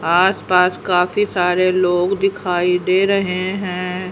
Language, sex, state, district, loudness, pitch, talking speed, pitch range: Hindi, female, Haryana, Rohtak, -17 LUFS, 185 Hz, 130 wpm, 180-190 Hz